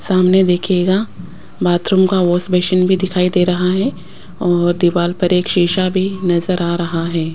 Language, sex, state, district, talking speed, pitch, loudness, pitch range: Hindi, female, Rajasthan, Jaipur, 170 wpm, 180 Hz, -15 LUFS, 175-185 Hz